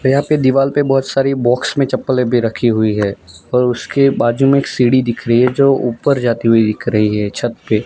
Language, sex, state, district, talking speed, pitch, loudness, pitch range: Hindi, male, Gujarat, Gandhinagar, 235 wpm, 125 Hz, -14 LUFS, 115-135 Hz